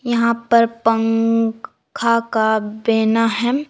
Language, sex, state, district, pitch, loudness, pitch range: Hindi, female, Jharkhand, Palamu, 230 Hz, -17 LUFS, 225-235 Hz